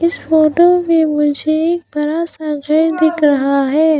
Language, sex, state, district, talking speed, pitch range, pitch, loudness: Hindi, female, Arunachal Pradesh, Papum Pare, 165 wpm, 295-330 Hz, 315 Hz, -14 LUFS